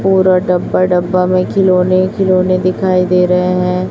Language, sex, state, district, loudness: Hindi, female, Chhattisgarh, Raipur, -12 LUFS